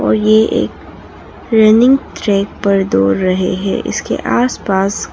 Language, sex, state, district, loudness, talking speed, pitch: Hindi, female, Arunachal Pradesh, Papum Pare, -13 LUFS, 140 wpm, 190 Hz